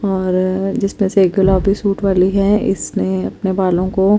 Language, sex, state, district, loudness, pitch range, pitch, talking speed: Hindi, female, Chandigarh, Chandigarh, -16 LUFS, 185-195 Hz, 190 Hz, 185 wpm